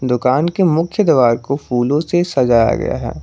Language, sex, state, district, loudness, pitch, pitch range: Hindi, male, Jharkhand, Garhwa, -15 LUFS, 140 Hz, 125-170 Hz